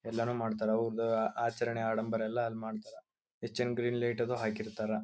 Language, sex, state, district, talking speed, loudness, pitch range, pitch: Kannada, male, Karnataka, Belgaum, 140 wpm, -34 LUFS, 110-120 Hz, 115 Hz